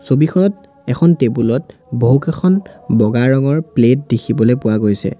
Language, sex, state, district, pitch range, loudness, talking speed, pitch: Assamese, male, Assam, Sonitpur, 115-155 Hz, -14 LUFS, 125 wpm, 125 Hz